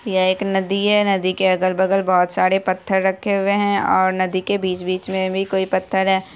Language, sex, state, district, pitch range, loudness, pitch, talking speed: Hindi, female, Bihar, Saharsa, 185-195 Hz, -19 LUFS, 190 Hz, 215 wpm